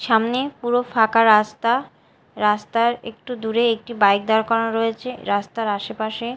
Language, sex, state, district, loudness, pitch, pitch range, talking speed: Bengali, female, Odisha, Malkangiri, -20 LUFS, 225 Hz, 215-235 Hz, 130 wpm